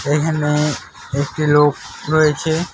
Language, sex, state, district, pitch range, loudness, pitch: Bengali, male, West Bengal, Alipurduar, 145-155 Hz, -17 LUFS, 150 Hz